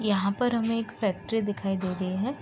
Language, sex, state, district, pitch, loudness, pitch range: Hindi, female, Uttar Pradesh, Deoria, 205 Hz, -28 LUFS, 195-225 Hz